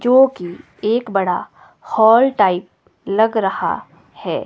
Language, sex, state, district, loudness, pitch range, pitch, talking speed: Hindi, female, Himachal Pradesh, Shimla, -17 LUFS, 190-235 Hz, 220 Hz, 105 wpm